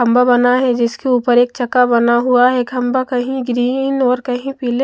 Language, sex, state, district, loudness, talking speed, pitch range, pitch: Hindi, female, Maharashtra, Mumbai Suburban, -15 LUFS, 210 wpm, 245-255 Hz, 250 Hz